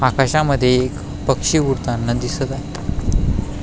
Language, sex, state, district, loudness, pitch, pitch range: Marathi, male, Maharashtra, Pune, -19 LUFS, 130 Hz, 120-135 Hz